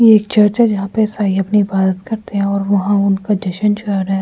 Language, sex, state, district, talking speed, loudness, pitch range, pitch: Hindi, female, Delhi, New Delhi, 255 wpm, -15 LUFS, 195-210 Hz, 205 Hz